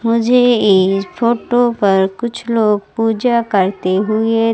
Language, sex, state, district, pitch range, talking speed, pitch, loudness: Hindi, female, Madhya Pradesh, Umaria, 195-235 Hz, 120 wpm, 225 Hz, -14 LUFS